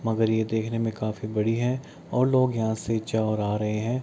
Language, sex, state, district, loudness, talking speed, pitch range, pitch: Hindi, male, Bihar, Kishanganj, -26 LUFS, 240 wpm, 110-115 Hz, 110 Hz